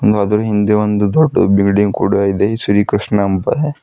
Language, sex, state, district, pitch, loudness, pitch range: Kannada, female, Karnataka, Bidar, 105 Hz, -14 LUFS, 100-105 Hz